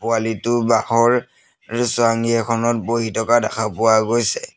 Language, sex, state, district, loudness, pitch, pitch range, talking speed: Assamese, male, Assam, Sonitpur, -18 LUFS, 115 Hz, 115-120 Hz, 120 wpm